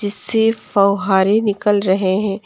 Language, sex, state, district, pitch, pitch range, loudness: Hindi, female, Uttar Pradesh, Lucknow, 205 Hz, 195-210 Hz, -16 LUFS